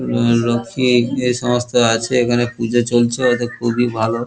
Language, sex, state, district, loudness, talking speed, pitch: Bengali, male, West Bengal, Kolkata, -16 LUFS, 170 wpm, 120 Hz